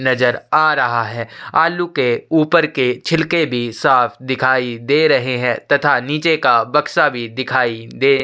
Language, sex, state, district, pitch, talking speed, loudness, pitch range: Hindi, male, Chhattisgarh, Sukma, 130 Hz, 170 wpm, -16 LUFS, 120-155 Hz